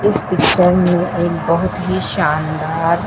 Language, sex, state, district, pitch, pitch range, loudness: Hindi, female, Madhya Pradesh, Dhar, 175 Hz, 160-180 Hz, -16 LUFS